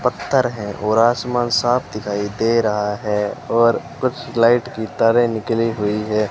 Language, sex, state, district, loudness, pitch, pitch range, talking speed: Hindi, male, Rajasthan, Bikaner, -19 LUFS, 115 Hz, 105-120 Hz, 160 wpm